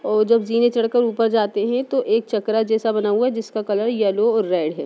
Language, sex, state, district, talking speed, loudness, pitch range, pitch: Hindi, female, Bihar, Sitamarhi, 260 wpm, -19 LUFS, 215-230 Hz, 225 Hz